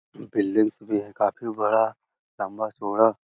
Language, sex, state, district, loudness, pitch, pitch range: Hindi, male, Bihar, Jahanabad, -25 LUFS, 110 Hz, 105-110 Hz